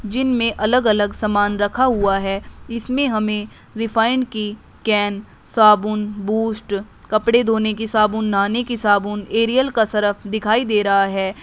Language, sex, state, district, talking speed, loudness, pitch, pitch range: Hindi, female, Uttar Pradesh, Shamli, 145 wpm, -18 LUFS, 215 Hz, 205-225 Hz